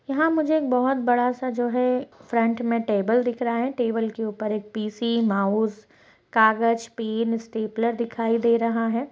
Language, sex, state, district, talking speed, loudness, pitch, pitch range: Hindi, female, Bihar, Begusarai, 170 wpm, -23 LUFS, 230 Hz, 225-245 Hz